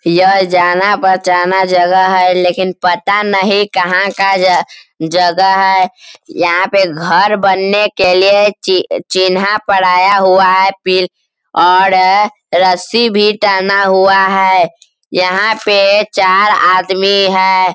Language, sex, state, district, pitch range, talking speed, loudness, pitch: Hindi, male, Bihar, Sitamarhi, 185-200 Hz, 120 wpm, -10 LUFS, 190 Hz